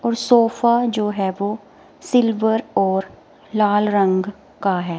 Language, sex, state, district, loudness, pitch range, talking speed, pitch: Hindi, female, Himachal Pradesh, Shimla, -19 LUFS, 195-235 Hz, 130 wpm, 210 Hz